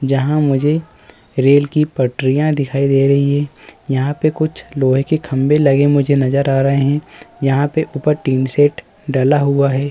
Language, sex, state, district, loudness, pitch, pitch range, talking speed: Hindi, male, Uttar Pradesh, Muzaffarnagar, -15 LUFS, 140 Hz, 135-150 Hz, 175 wpm